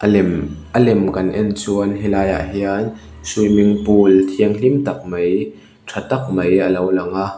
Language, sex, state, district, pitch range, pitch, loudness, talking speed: Mizo, male, Mizoram, Aizawl, 95-105 Hz, 100 Hz, -16 LUFS, 160 wpm